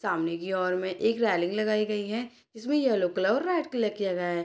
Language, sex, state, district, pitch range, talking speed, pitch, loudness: Hindi, female, Bihar, Purnia, 185-225 Hz, 240 wpm, 210 Hz, -28 LUFS